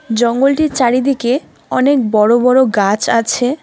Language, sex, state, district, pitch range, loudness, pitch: Bengali, female, West Bengal, Alipurduar, 230-270 Hz, -13 LUFS, 250 Hz